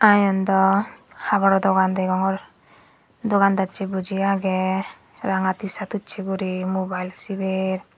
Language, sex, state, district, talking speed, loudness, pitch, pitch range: Chakma, female, Tripura, Dhalai, 120 wpm, -22 LUFS, 195 Hz, 190-195 Hz